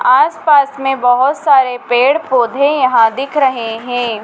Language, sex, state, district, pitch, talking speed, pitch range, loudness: Hindi, female, Madhya Pradesh, Dhar, 260 Hz, 155 wpm, 245-280 Hz, -12 LUFS